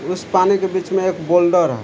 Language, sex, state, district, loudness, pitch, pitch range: Hindi, male, Bihar, Supaul, -17 LUFS, 185 Hz, 175-190 Hz